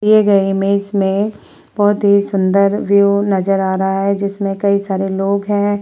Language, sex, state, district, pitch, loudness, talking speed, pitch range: Hindi, female, Uttar Pradesh, Muzaffarnagar, 200 Hz, -15 LUFS, 175 wpm, 195-205 Hz